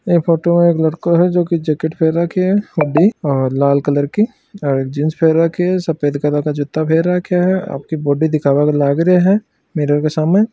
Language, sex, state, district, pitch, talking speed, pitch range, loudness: Marwari, male, Rajasthan, Nagaur, 160 Hz, 105 wpm, 145-180 Hz, -15 LUFS